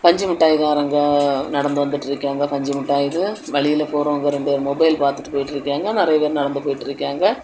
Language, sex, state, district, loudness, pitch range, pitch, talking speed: Tamil, female, Tamil Nadu, Kanyakumari, -19 LUFS, 140-150 Hz, 145 Hz, 170 wpm